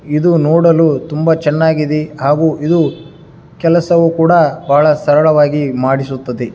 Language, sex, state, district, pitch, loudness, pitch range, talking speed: Kannada, male, Karnataka, Dharwad, 155 Hz, -12 LUFS, 145-165 Hz, 100 wpm